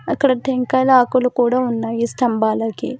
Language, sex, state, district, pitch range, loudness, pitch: Telugu, female, Telangana, Hyderabad, 235-260 Hz, -17 LUFS, 250 Hz